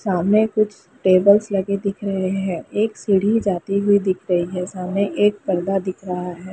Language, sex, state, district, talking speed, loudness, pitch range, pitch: Hindi, female, Bihar, Lakhisarai, 185 wpm, -20 LUFS, 185-205 Hz, 195 Hz